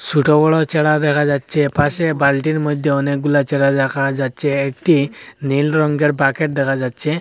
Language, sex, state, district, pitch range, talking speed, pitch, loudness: Bengali, male, Assam, Hailakandi, 140-150 Hz, 150 wpm, 145 Hz, -16 LUFS